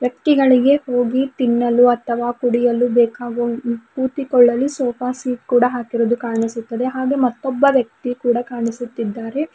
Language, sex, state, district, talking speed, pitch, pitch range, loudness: Kannada, female, Karnataka, Bidar, 105 wpm, 245 Hz, 240-260 Hz, -18 LUFS